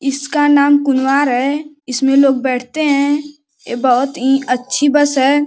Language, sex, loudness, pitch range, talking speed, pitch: Hindi, male, -14 LUFS, 265-290 Hz, 155 wpm, 275 Hz